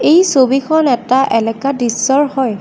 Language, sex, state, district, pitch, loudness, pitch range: Assamese, female, Assam, Kamrup Metropolitan, 265 Hz, -13 LUFS, 240-280 Hz